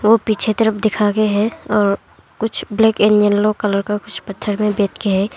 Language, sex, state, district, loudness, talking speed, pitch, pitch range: Hindi, female, Arunachal Pradesh, Longding, -17 LUFS, 210 wpm, 210 Hz, 205-220 Hz